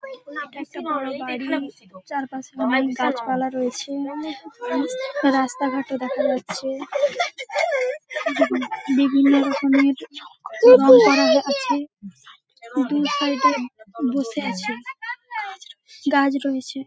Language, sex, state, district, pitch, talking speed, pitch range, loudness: Bengali, female, West Bengal, Paschim Medinipur, 275 Hz, 90 wpm, 260-290 Hz, -21 LUFS